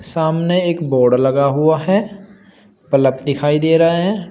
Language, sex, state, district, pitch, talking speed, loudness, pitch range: Hindi, male, Uttar Pradesh, Shamli, 160 Hz, 155 wpm, -15 LUFS, 140-180 Hz